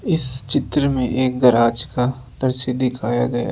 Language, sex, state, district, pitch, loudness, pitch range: Hindi, male, Rajasthan, Jaipur, 125 Hz, -18 LUFS, 125-130 Hz